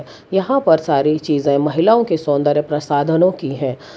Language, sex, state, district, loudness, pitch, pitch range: Hindi, female, Gujarat, Valsad, -16 LUFS, 150 Hz, 145-165 Hz